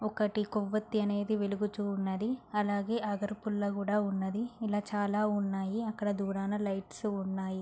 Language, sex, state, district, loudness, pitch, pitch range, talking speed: Telugu, female, Andhra Pradesh, Anantapur, -33 LUFS, 205 Hz, 200-210 Hz, 135 wpm